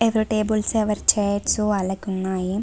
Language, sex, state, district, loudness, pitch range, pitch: Telugu, female, Andhra Pradesh, Visakhapatnam, -21 LUFS, 195-215 Hz, 210 Hz